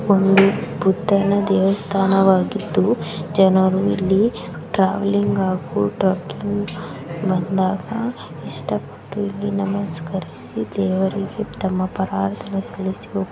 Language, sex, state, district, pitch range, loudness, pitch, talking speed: Kannada, female, Karnataka, Belgaum, 185-200 Hz, -20 LUFS, 190 Hz, 70 wpm